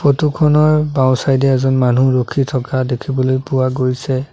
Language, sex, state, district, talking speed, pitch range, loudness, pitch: Assamese, male, Assam, Sonitpur, 165 wpm, 130-140 Hz, -15 LUFS, 130 Hz